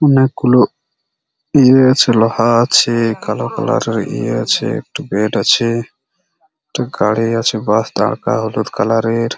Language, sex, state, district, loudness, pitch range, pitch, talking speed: Bengali, male, West Bengal, Purulia, -14 LUFS, 110-125 Hz, 115 Hz, 145 wpm